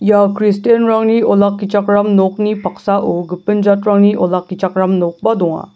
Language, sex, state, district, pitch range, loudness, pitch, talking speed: Garo, male, Meghalaya, South Garo Hills, 185-210 Hz, -13 LUFS, 200 Hz, 105 wpm